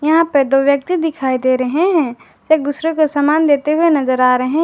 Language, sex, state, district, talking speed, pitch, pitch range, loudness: Hindi, female, Jharkhand, Garhwa, 220 wpm, 290 Hz, 265-320 Hz, -15 LUFS